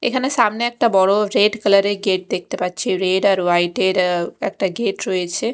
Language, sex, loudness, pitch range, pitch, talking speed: Bengali, female, -18 LUFS, 180-220 Hz, 195 Hz, 195 wpm